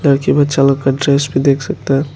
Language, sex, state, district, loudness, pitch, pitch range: Hindi, male, Arunachal Pradesh, Lower Dibang Valley, -14 LUFS, 140 Hz, 135-140 Hz